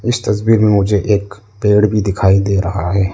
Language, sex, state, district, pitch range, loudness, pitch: Hindi, male, Arunachal Pradesh, Lower Dibang Valley, 100-105 Hz, -14 LUFS, 105 Hz